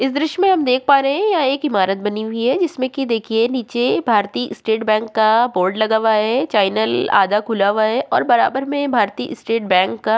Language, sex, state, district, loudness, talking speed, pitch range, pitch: Hindi, female, Uttarakhand, Tehri Garhwal, -17 LUFS, 230 wpm, 215-270 Hz, 225 Hz